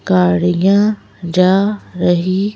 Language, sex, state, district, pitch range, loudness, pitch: Hindi, female, Madhya Pradesh, Bhopal, 150-200 Hz, -14 LUFS, 185 Hz